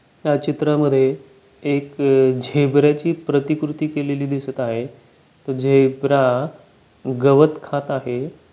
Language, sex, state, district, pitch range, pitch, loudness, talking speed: Marathi, male, Maharashtra, Pune, 135-150 Hz, 140 Hz, -19 LUFS, 100 wpm